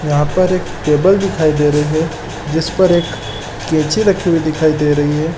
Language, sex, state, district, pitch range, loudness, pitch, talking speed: Hindi, male, Chhattisgarh, Balrampur, 150-170 Hz, -14 LUFS, 155 Hz, 200 wpm